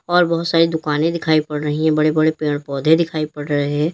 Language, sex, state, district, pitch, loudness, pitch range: Hindi, female, Uttar Pradesh, Lalitpur, 155 Hz, -18 LUFS, 150-165 Hz